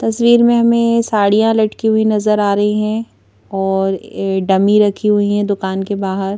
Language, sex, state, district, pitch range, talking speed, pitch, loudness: Hindi, female, Madhya Pradesh, Bhopal, 195-220 Hz, 180 wpm, 210 Hz, -14 LUFS